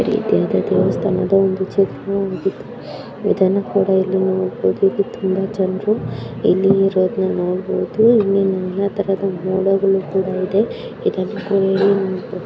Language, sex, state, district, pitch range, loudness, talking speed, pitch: Kannada, female, Karnataka, Gulbarga, 190-195 Hz, -18 LUFS, 105 wpm, 195 Hz